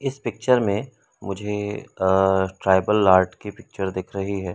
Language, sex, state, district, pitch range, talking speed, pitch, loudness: Hindi, male, Madhya Pradesh, Umaria, 95-105 Hz, 160 wpm, 100 Hz, -22 LUFS